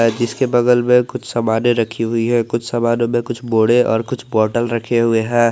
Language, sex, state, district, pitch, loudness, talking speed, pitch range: Hindi, male, Jharkhand, Garhwa, 120 Hz, -16 LUFS, 205 wpm, 115-120 Hz